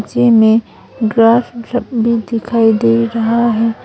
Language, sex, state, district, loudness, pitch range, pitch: Hindi, female, Arunachal Pradesh, Longding, -13 LUFS, 225-235 Hz, 230 Hz